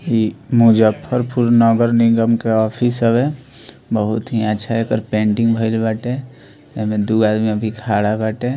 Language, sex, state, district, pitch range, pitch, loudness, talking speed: Bhojpuri, male, Bihar, Muzaffarpur, 110-120 Hz, 115 Hz, -17 LUFS, 140 wpm